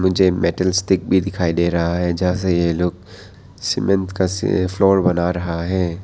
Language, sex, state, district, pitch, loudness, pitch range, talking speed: Hindi, male, Arunachal Pradesh, Papum Pare, 90 Hz, -18 LUFS, 85-95 Hz, 180 wpm